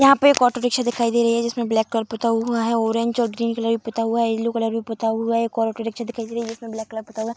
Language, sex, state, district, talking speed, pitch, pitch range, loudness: Hindi, female, Bihar, Darbhanga, 350 wpm, 230 Hz, 225-235 Hz, -21 LUFS